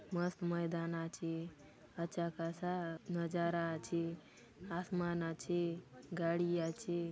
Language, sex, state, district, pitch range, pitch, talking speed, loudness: Halbi, female, Chhattisgarh, Bastar, 165-175 Hz, 170 Hz, 95 wpm, -40 LUFS